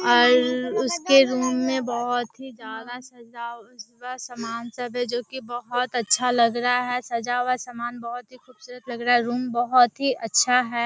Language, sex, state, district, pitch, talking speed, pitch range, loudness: Hindi, female, Bihar, Kishanganj, 245 Hz, 175 wpm, 240-250 Hz, -23 LUFS